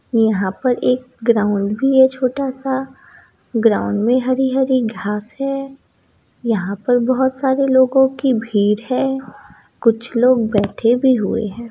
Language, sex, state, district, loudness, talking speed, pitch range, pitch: Hindi, female, Bihar, East Champaran, -17 LUFS, 145 wpm, 220-265 Hz, 250 Hz